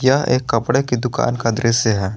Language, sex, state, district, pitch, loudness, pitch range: Hindi, male, Jharkhand, Garhwa, 120 Hz, -18 LUFS, 115-130 Hz